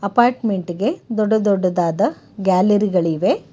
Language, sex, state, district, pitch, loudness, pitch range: Kannada, female, Karnataka, Bangalore, 200 Hz, -18 LUFS, 185-220 Hz